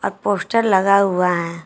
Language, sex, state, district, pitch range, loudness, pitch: Hindi, female, Jharkhand, Garhwa, 175-200 Hz, -17 LUFS, 190 Hz